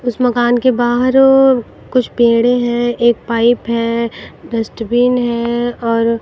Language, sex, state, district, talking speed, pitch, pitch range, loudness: Hindi, female, Bihar, West Champaran, 125 wpm, 240 Hz, 235-245 Hz, -14 LUFS